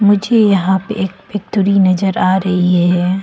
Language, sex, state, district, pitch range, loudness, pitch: Hindi, female, Arunachal Pradesh, Longding, 185-205 Hz, -13 LUFS, 190 Hz